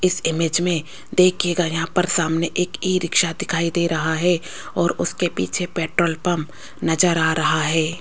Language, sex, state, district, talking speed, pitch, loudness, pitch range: Hindi, female, Rajasthan, Jaipur, 170 wpm, 170 Hz, -20 LUFS, 160-180 Hz